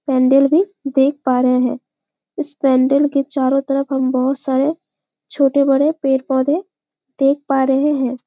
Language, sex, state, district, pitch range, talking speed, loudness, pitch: Hindi, female, Chhattisgarh, Bastar, 265-285 Hz, 150 wpm, -16 LUFS, 275 Hz